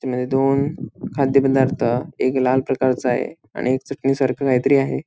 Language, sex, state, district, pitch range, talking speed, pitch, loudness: Marathi, male, Maharashtra, Sindhudurg, 130-135 Hz, 165 wpm, 135 Hz, -20 LUFS